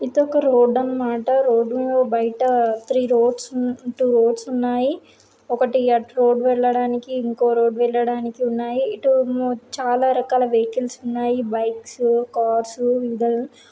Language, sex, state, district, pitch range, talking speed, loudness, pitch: Telugu, female, Andhra Pradesh, Srikakulam, 235-255 Hz, 120 wpm, -20 LUFS, 245 Hz